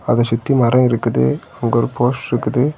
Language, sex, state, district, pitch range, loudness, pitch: Tamil, male, Tamil Nadu, Kanyakumari, 115-130 Hz, -17 LUFS, 120 Hz